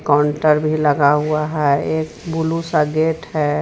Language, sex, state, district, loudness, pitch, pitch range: Hindi, female, Jharkhand, Ranchi, -17 LUFS, 155 Hz, 150-160 Hz